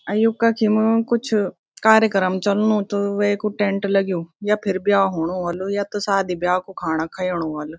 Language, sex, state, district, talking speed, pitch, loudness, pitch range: Garhwali, female, Uttarakhand, Tehri Garhwal, 175 wpm, 200 Hz, -20 LUFS, 185-210 Hz